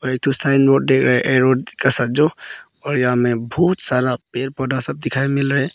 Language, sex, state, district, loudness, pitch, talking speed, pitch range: Hindi, male, Arunachal Pradesh, Papum Pare, -17 LUFS, 130 Hz, 135 wpm, 125-140 Hz